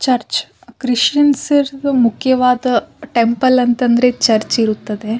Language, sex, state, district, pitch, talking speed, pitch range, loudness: Kannada, female, Karnataka, Bijapur, 250 Hz, 105 wpm, 235-260 Hz, -15 LUFS